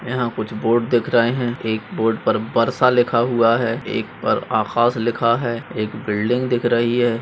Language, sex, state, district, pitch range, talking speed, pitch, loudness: Hindi, male, Maharashtra, Nagpur, 115-120 Hz, 190 wpm, 120 Hz, -19 LUFS